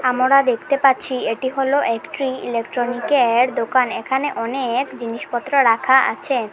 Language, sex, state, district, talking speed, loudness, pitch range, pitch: Bengali, female, Assam, Hailakandi, 120 wpm, -18 LUFS, 235-270 Hz, 255 Hz